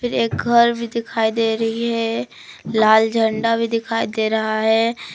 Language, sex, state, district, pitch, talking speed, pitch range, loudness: Hindi, female, Jharkhand, Palamu, 225 Hz, 165 wpm, 220-230 Hz, -18 LUFS